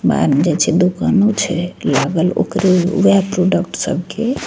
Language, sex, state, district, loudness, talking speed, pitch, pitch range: Maithili, female, Bihar, Begusarai, -15 LUFS, 145 wpm, 180 Hz, 170-195 Hz